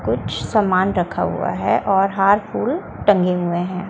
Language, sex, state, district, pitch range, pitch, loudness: Hindi, female, Chhattisgarh, Raipur, 180-200 Hz, 195 Hz, -19 LUFS